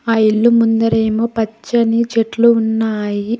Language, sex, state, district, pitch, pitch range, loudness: Telugu, female, Telangana, Hyderabad, 225 Hz, 220-230 Hz, -15 LUFS